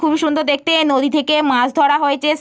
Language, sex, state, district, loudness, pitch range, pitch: Bengali, female, West Bengal, Jalpaiguri, -15 LUFS, 285-310 Hz, 300 Hz